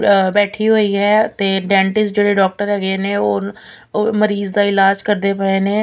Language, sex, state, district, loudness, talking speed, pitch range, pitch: Punjabi, female, Punjab, Pathankot, -15 LUFS, 165 wpm, 195-205 Hz, 200 Hz